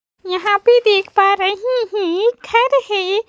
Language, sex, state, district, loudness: Hindi, female, Madhya Pradesh, Bhopal, -15 LUFS